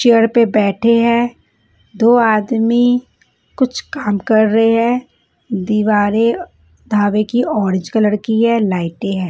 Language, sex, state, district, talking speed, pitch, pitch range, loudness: Hindi, female, Bihar, West Champaran, 130 wpm, 225 Hz, 205-235 Hz, -15 LUFS